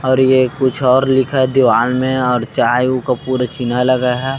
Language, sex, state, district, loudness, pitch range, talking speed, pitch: Chhattisgarhi, male, Chhattisgarh, Kabirdham, -14 LUFS, 125-130 Hz, 220 wpm, 130 Hz